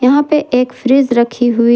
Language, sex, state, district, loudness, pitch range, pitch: Hindi, female, Jharkhand, Ranchi, -13 LUFS, 240-270 Hz, 250 Hz